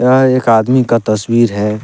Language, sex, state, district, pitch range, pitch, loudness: Hindi, male, Jharkhand, Deoghar, 110-130 Hz, 115 Hz, -12 LUFS